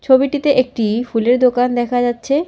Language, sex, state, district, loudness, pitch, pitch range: Bengali, female, West Bengal, Alipurduar, -16 LUFS, 250 Hz, 240-270 Hz